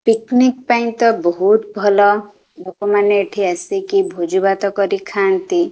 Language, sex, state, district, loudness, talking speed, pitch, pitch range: Odia, female, Odisha, Khordha, -16 LUFS, 125 wpm, 205 Hz, 200-250 Hz